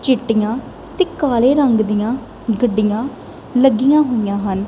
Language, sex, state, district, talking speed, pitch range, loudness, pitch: Punjabi, female, Punjab, Kapurthala, 115 wpm, 215-265 Hz, -16 LUFS, 240 Hz